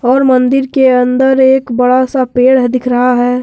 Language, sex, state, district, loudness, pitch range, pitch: Hindi, male, Jharkhand, Deoghar, -10 LUFS, 250-265 Hz, 255 Hz